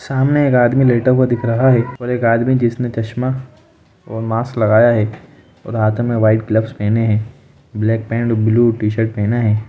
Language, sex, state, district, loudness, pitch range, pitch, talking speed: Hindi, male, Jharkhand, Sahebganj, -16 LUFS, 110-125 Hz, 115 Hz, 190 wpm